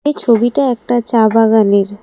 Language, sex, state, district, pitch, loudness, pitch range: Bengali, female, Assam, Kamrup Metropolitan, 230 Hz, -12 LUFS, 220-245 Hz